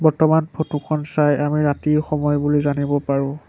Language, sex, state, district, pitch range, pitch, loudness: Assamese, male, Assam, Sonitpur, 145-155 Hz, 150 Hz, -19 LUFS